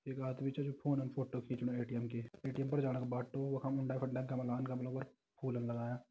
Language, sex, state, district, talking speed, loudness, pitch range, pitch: Hindi, male, Uttarakhand, Tehri Garhwal, 205 wpm, -40 LUFS, 125-135 Hz, 130 Hz